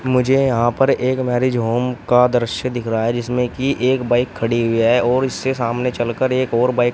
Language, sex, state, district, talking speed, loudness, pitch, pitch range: Hindi, male, Uttar Pradesh, Shamli, 225 wpm, -18 LUFS, 125 Hz, 120-130 Hz